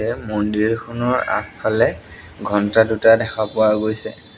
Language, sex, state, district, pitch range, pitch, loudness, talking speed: Assamese, male, Assam, Sonitpur, 105-115 Hz, 110 Hz, -18 LUFS, 110 wpm